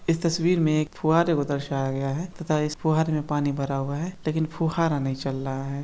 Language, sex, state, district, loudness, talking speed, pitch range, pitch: Hindi, male, Uttar Pradesh, Hamirpur, -25 LUFS, 235 wpm, 140-165 Hz, 155 Hz